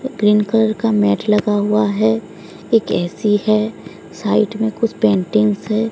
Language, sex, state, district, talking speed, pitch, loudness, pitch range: Hindi, female, Odisha, Sambalpur, 150 wpm, 210 Hz, -17 LUFS, 195-220 Hz